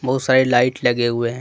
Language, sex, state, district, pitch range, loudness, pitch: Hindi, male, Jharkhand, Deoghar, 120-130 Hz, -17 LUFS, 125 Hz